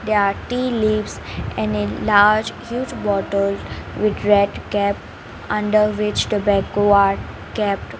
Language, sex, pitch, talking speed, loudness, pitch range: English, female, 205 Hz, 125 wpm, -19 LUFS, 200-215 Hz